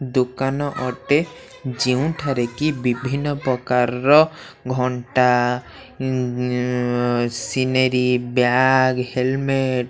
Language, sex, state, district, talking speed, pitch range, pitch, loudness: Odia, male, Odisha, Khordha, 75 wpm, 125-135 Hz, 130 Hz, -20 LUFS